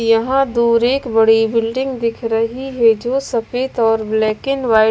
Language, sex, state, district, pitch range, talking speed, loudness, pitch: Hindi, female, Bihar, West Champaran, 225-255 Hz, 185 wpm, -16 LUFS, 230 Hz